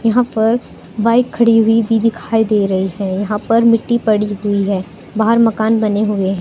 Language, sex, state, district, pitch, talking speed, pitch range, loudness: Hindi, female, Uttar Pradesh, Saharanpur, 220 Hz, 195 wpm, 205-230 Hz, -15 LUFS